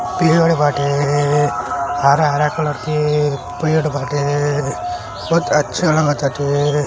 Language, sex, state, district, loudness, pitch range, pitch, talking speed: Bhojpuri, male, Uttar Pradesh, Deoria, -17 LUFS, 145-155 Hz, 145 Hz, 95 wpm